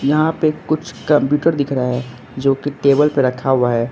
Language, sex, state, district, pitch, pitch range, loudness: Hindi, male, Arunachal Pradesh, Lower Dibang Valley, 140 Hz, 125-150 Hz, -17 LUFS